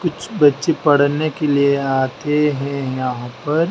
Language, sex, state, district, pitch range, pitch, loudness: Hindi, male, Madhya Pradesh, Dhar, 135-155 Hz, 145 Hz, -18 LUFS